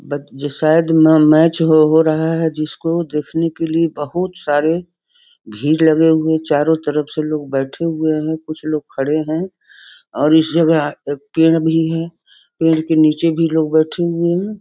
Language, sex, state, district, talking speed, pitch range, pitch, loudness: Hindi, female, Bihar, Sitamarhi, 175 wpm, 155-165 Hz, 160 Hz, -16 LUFS